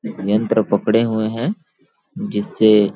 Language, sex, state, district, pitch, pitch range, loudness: Hindi, male, Chhattisgarh, Balrampur, 110 Hz, 105-115 Hz, -18 LUFS